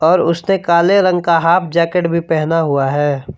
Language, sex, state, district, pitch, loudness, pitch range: Hindi, male, Jharkhand, Palamu, 170 Hz, -14 LUFS, 160-175 Hz